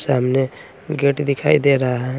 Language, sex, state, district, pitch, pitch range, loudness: Hindi, male, Bihar, Patna, 135 Hz, 130-145 Hz, -18 LUFS